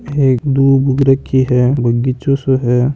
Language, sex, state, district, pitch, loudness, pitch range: Marwari, male, Rajasthan, Nagaur, 135 Hz, -13 LUFS, 125-135 Hz